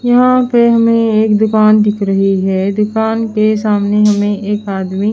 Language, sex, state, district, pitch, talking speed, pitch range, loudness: Hindi, female, Haryana, Charkhi Dadri, 215 Hz, 165 wpm, 205-220 Hz, -12 LUFS